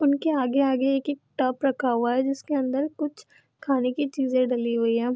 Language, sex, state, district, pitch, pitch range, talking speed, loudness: Hindi, female, Bihar, Madhepura, 270 Hz, 250-280 Hz, 185 wpm, -25 LUFS